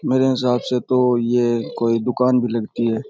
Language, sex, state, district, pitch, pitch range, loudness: Rajasthani, male, Rajasthan, Churu, 120 Hz, 115-125 Hz, -19 LUFS